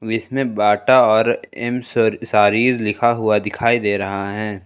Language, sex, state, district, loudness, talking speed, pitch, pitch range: Hindi, male, Jharkhand, Ranchi, -17 LUFS, 140 wpm, 110 Hz, 105-120 Hz